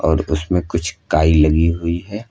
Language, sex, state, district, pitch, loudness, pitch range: Hindi, male, Uttar Pradesh, Lucknow, 85 Hz, -17 LUFS, 80-85 Hz